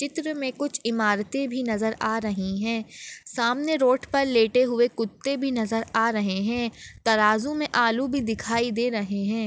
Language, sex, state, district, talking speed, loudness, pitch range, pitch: Hindi, female, Maharashtra, Nagpur, 175 wpm, -25 LUFS, 220-260 Hz, 230 Hz